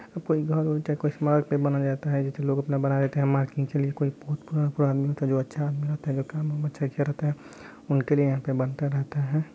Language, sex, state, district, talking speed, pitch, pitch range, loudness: Hindi, male, Bihar, Saran, 285 wpm, 145 Hz, 140-150 Hz, -27 LUFS